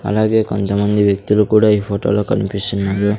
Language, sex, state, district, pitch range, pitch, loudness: Telugu, male, Andhra Pradesh, Sri Satya Sai, 100-105 Hz, 105 Hz, -16 LUFS